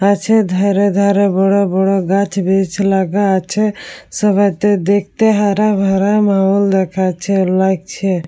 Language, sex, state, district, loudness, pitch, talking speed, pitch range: Bengali, female, West Bengal, Purulia, -14 LUFS, 195 Hz, 115 wpm, 190-205 Hz